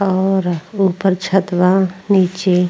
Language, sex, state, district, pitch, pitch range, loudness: Bhojpuri, female, Uttar Pradesh, Ghazipur, 185 Hz, 180-195 Hz, -16 LUFS